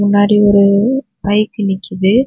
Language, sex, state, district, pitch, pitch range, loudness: Tamil, female, Tamil Nadu, Kanyakumari, 205 Hz, 200-210 Hz, -13 LUFS